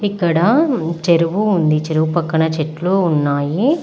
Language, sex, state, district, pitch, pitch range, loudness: Telugu, female, Andhra Pradesh, Guntur, 170 Hz, 155-200 Hz, -16 LUFS